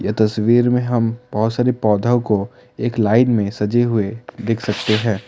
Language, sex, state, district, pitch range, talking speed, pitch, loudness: Hindi, male, Assam, Kamrup Metropolitan, 105-120 Hz, 195 wpm, 115 Hz, -18 LUFS